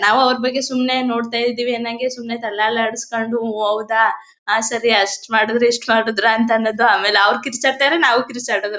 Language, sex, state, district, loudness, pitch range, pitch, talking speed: Kannada, female, Karnataka, Mysore, -17 LUFS, 220-245 Hz, 230 Hz, 170 wpm